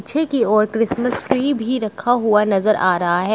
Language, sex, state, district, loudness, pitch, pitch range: Hindi, female, Uttar Pradesh, Shamli, -18 LUFS, 220 Hz, 210-250 Hz